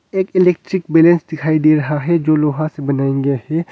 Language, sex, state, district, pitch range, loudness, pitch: Hindi, male, Arunachal Pradesh, Longding, 150-170 Hz, -15 LUFS, 155 Hz